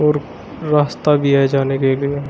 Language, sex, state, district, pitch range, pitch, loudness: Hindi, male, Uttar Pradesh, Shamli, 135-150 Hz, 140 Hz, -16 LUFS